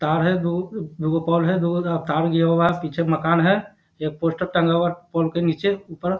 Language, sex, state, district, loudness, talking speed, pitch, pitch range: Hindi, male, Bihar, Jahanabad, -21 LUFS, 230 wpm, 170 Hz, 165-175 Hz